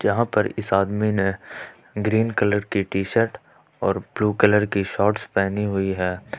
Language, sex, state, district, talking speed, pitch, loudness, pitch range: Hindi, male, Jharkhand, Ranchi, 170 wpm, 105 Hz, -22 LUFS, 95-105 Hz